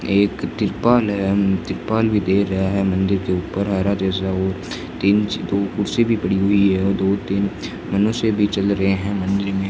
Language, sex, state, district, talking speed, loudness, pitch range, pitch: Hindi, male, Rajasthan, Bikaner, 205 wpm, -19 LUFS, 95-100 Hz, 100 Hz